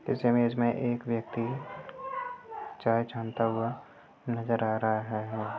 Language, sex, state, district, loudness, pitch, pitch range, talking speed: Hindi, male, Bihar, Gaya, -31 LUFS, 120 Hz, 115-140 Hz, 130 wpm